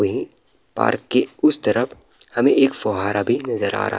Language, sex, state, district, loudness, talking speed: Hindi, male, Bihar, Araria, -20 LUFS, 195 wpm